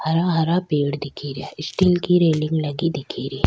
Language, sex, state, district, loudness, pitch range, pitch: Rajasthani, female, Rajasthan, Churu, -21 LUFS, 145-170 Hz, 155 Hz